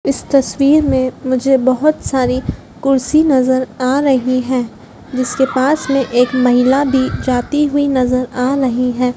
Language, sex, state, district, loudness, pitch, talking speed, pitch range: Hindi, female, Madhya Pradesh, Dhar, -14 LUFS, 260 Hz, 150 wpm, 255-275 Hz